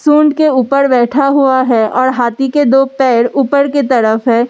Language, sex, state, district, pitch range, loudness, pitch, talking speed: Hindi, female, Delhi, New Delhi, 245-280 Hz, -11 LUFS, 265 Hz, 225 wpm